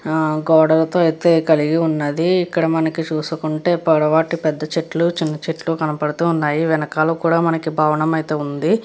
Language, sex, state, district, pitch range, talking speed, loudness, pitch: Telugu, female, Andhra Pradesh, Krishna, 155-165 Hz, 140 wpm, -18 LUFS, 160 Hz